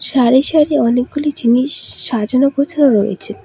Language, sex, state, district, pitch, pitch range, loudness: Bengali, female, West Bengal, Alipurduar, 260 Hz, 240-290 Hz, -14 LUFS